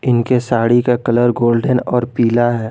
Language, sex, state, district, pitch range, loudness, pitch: Hindi, male, Jharkhand, Garhwa, 120-125 Hz, -15 LUFS, 120 Hz